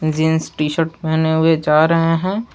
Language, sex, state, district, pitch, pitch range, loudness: Hindi, male, Jharkhand, Palamu, 160 Hz, 155-165 Hz, -16 LUFS